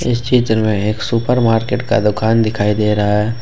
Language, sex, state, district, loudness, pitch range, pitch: Hindi, male, Jharkhand, Ranchi, -15 LUFS, 105-120 Hz, 110 Hz